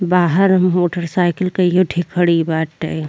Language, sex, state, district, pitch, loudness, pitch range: Bhojpuri, female, Uttar Pradesh, Deoria, 175 Hz, -16 LUFS, 165-180 Hz